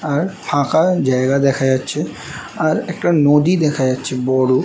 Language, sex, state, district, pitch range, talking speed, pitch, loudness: Bengali, male, West Bengal, Jhargram, 130-150 Hz, 155 wpm, 135 Hz, -16 LUFS